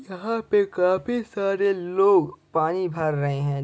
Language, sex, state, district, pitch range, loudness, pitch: Maithili, male, Bihar, Supaul, 160-200 Hz, -23 LUFS, 185 Hz